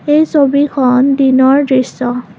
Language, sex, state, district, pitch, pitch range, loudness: Assamese, female, Assam, Kamrup Metropolitan, 270 Hz, 255-285 Hz, -11 LUFS